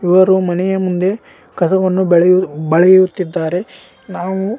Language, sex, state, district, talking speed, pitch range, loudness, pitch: Kannada, male, Karnataka, Raichur, 90 wpm, 180-190 Hz, -14 LUFS, 185 Hz